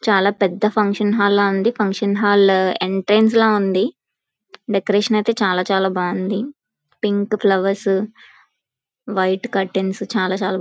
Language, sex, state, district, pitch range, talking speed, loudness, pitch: Telugu, female, Andhra Pradesh, Visakhapatnam, 190-215 Hz, 120 wpm, -18 LUFS, 200 Hz